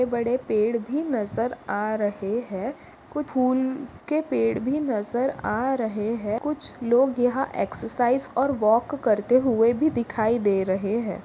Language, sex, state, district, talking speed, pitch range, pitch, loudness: Hindi, female, Maharashtra, Pune, 160 wpm, 215-265 Hz, 240 Hz, -24 LUFS